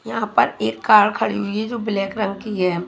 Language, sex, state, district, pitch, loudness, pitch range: Hindi, female, Chhattisgarh, Raipur, 205 Hz, -19 LUFS, 185-215 Hz